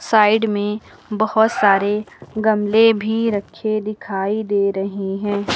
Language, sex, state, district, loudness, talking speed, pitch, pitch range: Hindi, female, Uttar Pradesh, Lucknow, -18 LUFS, 120 wpm, 210 Hz, 200-220 Hz